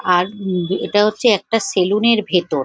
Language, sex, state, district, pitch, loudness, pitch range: Bengali, female, West Bengal, Paschim Medinipur, 195 Hz, -17 LUFS, 180-215 Hz